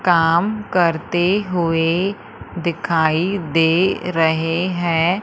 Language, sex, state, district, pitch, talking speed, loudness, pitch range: Hindi, female, Madhya Pradesh, Umaria, 170 Hz, 80 wpm, -18 LUFS, 165-185 Hz